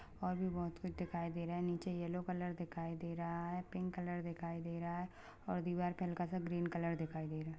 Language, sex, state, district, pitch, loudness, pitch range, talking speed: Hindi, female, Chhattisgarh, Balrampur, 175 Hz, -42 LUFS, 170-180 Hz, 255 wpm